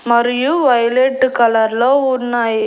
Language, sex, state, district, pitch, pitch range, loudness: Telugu, female, Andhra Pradesh, Annamaya, 245 Hz, 235-260 Hz, -14 LUFS